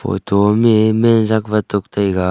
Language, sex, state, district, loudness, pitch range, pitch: Wancho, male, Arunachal Pradesh, Longding, -15 LUFS, 100-110 Hz, 105 Hz